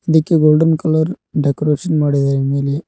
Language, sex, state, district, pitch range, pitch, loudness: Kannada, male, Karnataka, Koppal, 140-160 Hz, 150 Hz, -15 LUFS